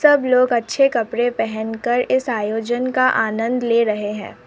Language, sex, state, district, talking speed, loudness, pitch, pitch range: Hindi, female, Assam, Sonitpur, 175 wpm, -19 LUFS, 235 Hz, 220-255 Hz